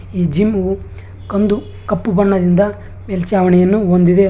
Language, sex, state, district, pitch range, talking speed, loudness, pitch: Kannada, male, Karnataka, Bangalore, 165-200 Hz, 100 wpm, -15 LUFS, 185 Hz